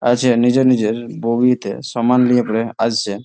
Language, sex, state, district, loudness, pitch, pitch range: Bengali, male, West Bengal, Malda, -16 LUFS, 120 Hz, 115-125 Hz